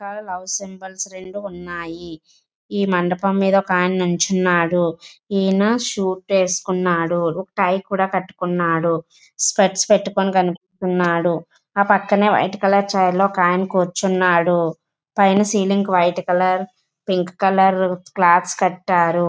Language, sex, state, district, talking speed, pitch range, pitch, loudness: Telugu, female, Andhra Pradesh, Visakhapatnam, 120 wpm, 175-195 Hz, 185 Hz, -18 LUFS